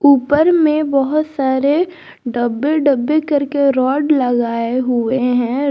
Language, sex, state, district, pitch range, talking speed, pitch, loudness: Hindi, female, Jharkhand, Garhwa, 250-300 Hz, 115 wpm, 280 Hz, -15 LUFS